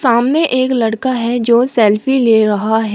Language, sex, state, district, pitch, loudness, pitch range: Hindi, female, Uttar Pradesh, Shamli, 235 Hz, -13 LUFS, 220-255 Hz